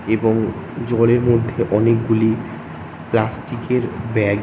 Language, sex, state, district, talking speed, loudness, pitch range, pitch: Bengali, male, West Bengal, North 24 Parganas, 110 wpm, -19 LUFS, 110-120 Hz, 115 Hz